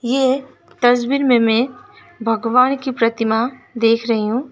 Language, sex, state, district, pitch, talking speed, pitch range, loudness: Hindi, female, West Bengal, Alipurduar, 245 Hz, 135 wpm, 230-260 Hz, -17 LUFS